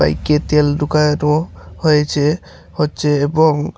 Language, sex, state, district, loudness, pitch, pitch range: Bengali, male, Tripura, Unakoti, -16 LUFS, 150 Hz, 145-150 Hz